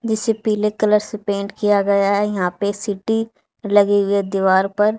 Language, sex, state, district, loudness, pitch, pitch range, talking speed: Hindi, female, Haryana, Charkhi Dadri, -18 LUFS, 205 Hz, 200-210 Hz, 180 wpm